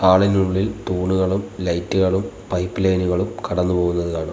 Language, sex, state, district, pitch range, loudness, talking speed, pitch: Malayalam, male, Kerala, Kollam, 90-95 Hz, -20 LUFS, 125 wpm, 95 Hz